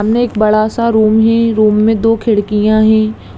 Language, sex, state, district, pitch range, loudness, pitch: Hindi, female, Bihar, Darbhanga, 215-225 Hz, -11 LUFS, 220 Hz